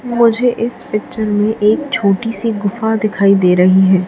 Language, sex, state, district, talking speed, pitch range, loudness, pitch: Hindi, female, Chhattisgarh, Raipur, 175 wpm, 195-230 Hz, -14 LUFS, 215 Hz